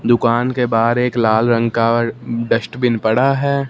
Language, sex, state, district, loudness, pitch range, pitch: Hindi, male, Punjab, Fazilka, -16 LUFS, 115-125 Hz, 120 Hz